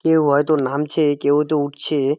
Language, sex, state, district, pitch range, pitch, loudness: Bengali, male, West Bengal, Jalpaiguri, 145-155 Hz, 145 Hz, -18 LUFS